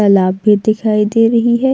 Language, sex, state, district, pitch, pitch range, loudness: Hindi, female, Uttar Pradesh, Jalaun, 215 Hz, 205-230 Hz, -13 LUFS